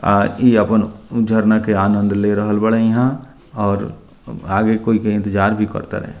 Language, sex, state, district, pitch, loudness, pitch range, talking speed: Bhojpuri, male, Bihar, Muzaffarpur, 105 Hz, -16 LUFS, 100-110 Hz, 175 wpm